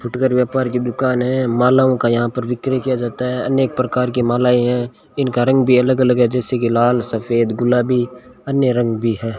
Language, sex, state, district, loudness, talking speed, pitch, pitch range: Hindi, male, Rajasthan, Bikaner, -17 LUFS, 210 wpm, 125 Hz, 120-130 Hz